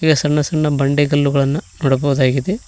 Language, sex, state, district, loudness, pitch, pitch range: Kannada, male, Karnataka, Koppal, -16 LUFS, 145 Hz, 140-155 Hz